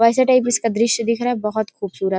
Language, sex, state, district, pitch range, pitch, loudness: Hindi, female, Chhattisgarh, Rajnandgaon, 210-245 Hz, 230 Hz, -18 LUFS